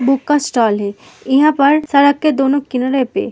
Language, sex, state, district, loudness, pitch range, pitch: Hindi, female, Uttar Pradesh, Muzaffarnagar, -14 LUFS, 260-290 Hz, 270 Hz